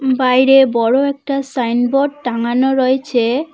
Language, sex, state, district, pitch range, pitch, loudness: Bengali, female, West Bengal, Cooch Behar, 245-275 Hz, 260 Hz, -14 LUFS